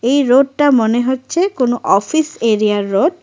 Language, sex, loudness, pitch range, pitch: Bengali, female, -14 LUFS, 225-295 Hz, 255 Hz